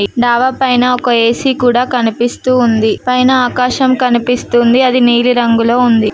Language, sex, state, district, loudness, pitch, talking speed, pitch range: Telugu, female, Telangana, Mahabubabad, -11 LUFS, 245 Hz, 155 wpm, 235-250 Hz